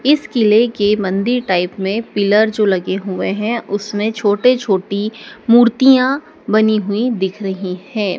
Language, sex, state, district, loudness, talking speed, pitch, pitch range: Hindi, female, Madhya Pradesh, Dhar, -15 LUFS, 145 wpm, 210 Hz, 195-235 Hz